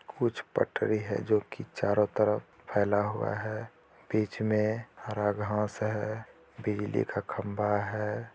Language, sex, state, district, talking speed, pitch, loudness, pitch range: Hindi, male, Jharkhand, Jamtara, 135 wpm, 105 Hz, -31 LUFS, 105-110 Hz